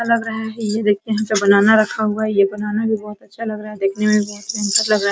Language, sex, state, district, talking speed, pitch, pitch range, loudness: Hindi, female, Bihar, Araria, 340 wpm, 215 Hz, 210-220 Hz, -18 LUFS